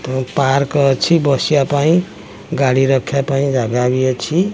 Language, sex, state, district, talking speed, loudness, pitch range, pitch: Odia, male, Odisha, Khordha, 145 wpm, -15 LUFS, 130-145 Hz, 135 Hz